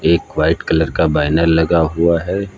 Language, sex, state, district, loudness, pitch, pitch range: Hindi, male, Uttar Pradesh, Lucknow, -15 LUFS, 85 Hz, 80-85 Hz